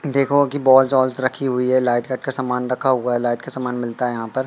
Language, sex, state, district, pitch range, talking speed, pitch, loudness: Hindi, male, Madhya Pradesh, Katni, 125-135 Hz, 280 wpm, 130 Hz, -19 LUFS